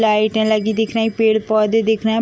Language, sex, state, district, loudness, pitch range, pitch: Hindi, female, Bihar, Gopalganj, -17 LUFS, 215-220 Hz, 220 Hz